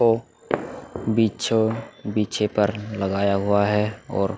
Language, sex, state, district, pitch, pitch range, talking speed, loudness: Hindi, male, Uttar Pradesh, Muzaffarnagar, 105 Hz, 100-110 Hz, 110 wpm, -23 LUFS